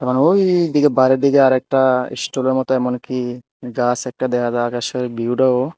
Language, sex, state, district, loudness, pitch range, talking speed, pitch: Bengali, male, Tripura, Unakoti, -17 LUFS, 125-130 Hz, 145 wpm, 130 Hz